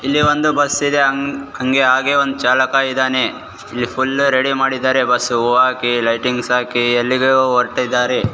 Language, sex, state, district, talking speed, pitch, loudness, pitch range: Kannada, male, Karnataka, Raichur, 135 wpm, 130 Hz, -15 LUFS, 125-135 Hz